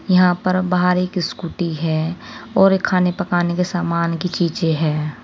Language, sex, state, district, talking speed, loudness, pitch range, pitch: Hindi, female, Uttar Pradesh, Saharanpur, 170 wpm, -19 LUFS, 165-180 Hz, 175 Hz